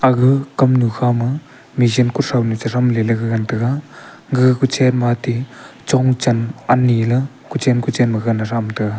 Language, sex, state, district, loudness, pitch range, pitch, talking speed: Wancho, male, Arunachal Pradesh, Longding, -17 LUFS, 115-130 Hz, 125 Hz, 145 wpm